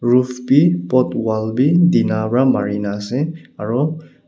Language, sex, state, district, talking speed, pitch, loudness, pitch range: Nagamese, male, Nagaland, Kohima, 140 wpm, 125 Hz, -17 LUFS, 110-150 Hz